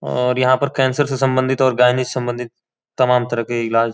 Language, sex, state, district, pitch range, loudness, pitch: Hindi, male, Uttar Pradesh, Gorakhpur, 120-130 Hz, -17 LUFS, 125 Hz